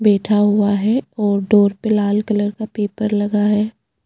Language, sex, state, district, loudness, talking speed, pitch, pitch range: Hindi, female, Chhattisgarh, Jashpur, -17 LUFS, 175 wpm, 210 Hz, 205-215 Hz